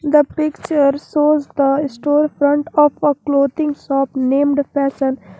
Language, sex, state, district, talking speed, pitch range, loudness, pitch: English, female, Jharkhand, Garhwa, 135 wpm, 275-295 Hz, -16 LUFS, 285 Hz